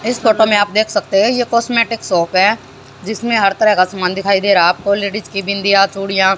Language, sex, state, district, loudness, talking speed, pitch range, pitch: Hindi, female, Haryana, Jhajjar, -14 LUFS, 205 wpm, 195-220 Hz, 200 Hz